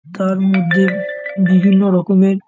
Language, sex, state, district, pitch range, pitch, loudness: Bengali, male, West Bengal, North 24 Parganas, 190-195 Hz, 195 Hz, -14 LUFS